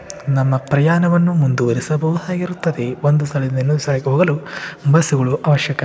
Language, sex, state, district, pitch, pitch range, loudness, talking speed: Kannada, male, Karnataka, Shimoga, 145 Hz, 135-170 Hz, -17 LUFS, 100 wpm